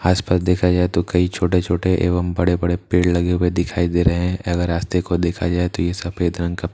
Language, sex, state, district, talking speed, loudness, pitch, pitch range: Hindi, male, Bihar, Katihar, 230 wpm, -19 LUFS, 90 Hz, 85-90 Hz